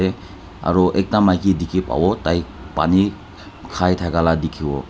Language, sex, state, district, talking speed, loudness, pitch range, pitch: Nagamese, male, Nagaland, Dimapur, 135 wpm, -19 LUFS, 85-95 Hz, 90 Hz